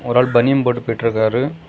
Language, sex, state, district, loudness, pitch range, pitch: Tamil, male, Tamil Nadu, Kanyakumari, -17 LUFS, 115-125 Hz, 120 Hz